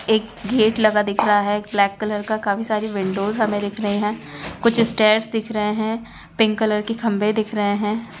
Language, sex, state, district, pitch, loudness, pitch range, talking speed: Hindi, female, Jharkhand, Sahebganj, 215 Hz, -20 LUFS, 205-220 Hz, 210 wpm